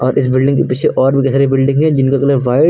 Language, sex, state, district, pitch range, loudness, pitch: Hindi, male, Uttar Pradesh, Lucknow, 130-140 Hz, -12 LUFS, 135 Hz